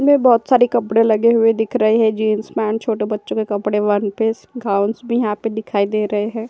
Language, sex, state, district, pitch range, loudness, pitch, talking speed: Hindi, female, Uttar Pradesh, Jyotiba Phule Nagar, 210-230 Hz, -17 LUFS, 220 Hz, 205 wpm